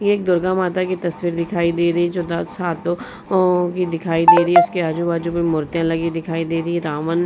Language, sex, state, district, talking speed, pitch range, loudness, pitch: Hindi, female, Uttar Pradesh, Varanasi, 255 wpm, 165-180 Hz, -19 LUFS, 170 Hz